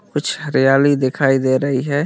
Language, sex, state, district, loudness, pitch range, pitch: Hindi, male, Uttar Pradesh, Hamirpur, -16 LUFS, 135-145 Hz, 140 Hz